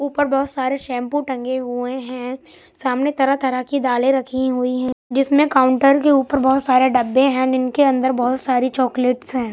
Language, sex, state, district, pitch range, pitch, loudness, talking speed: Hindi, male, Bihar, West Champaran, 255-275 Hz, 260 Hz, -18 LUFS, 185 wpm